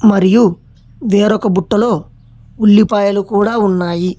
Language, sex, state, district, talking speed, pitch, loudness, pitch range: Telugu, male, Telangana, Hyderabad, 85 wpm, 200 Hz, -13 LUFS, 180-215 Hz